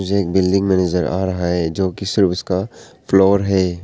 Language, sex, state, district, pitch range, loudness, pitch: Hindi, male, Arunachal Pradesh, Papum Pare, 90-95 Hz, -17 LUFS, 95 Hz